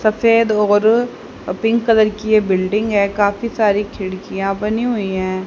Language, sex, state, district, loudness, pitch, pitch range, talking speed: Hindi, male, Haryana, Rohtak, -16 LUFS, 210 Hz, 195-225 Hz, 155 wpm